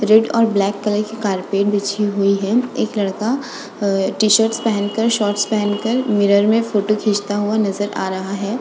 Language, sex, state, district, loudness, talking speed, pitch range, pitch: Hindi, female, Uttar Pradesh, Budaun, -18 LUFS, 180 wpm, 200-225 Hz, 210 Hz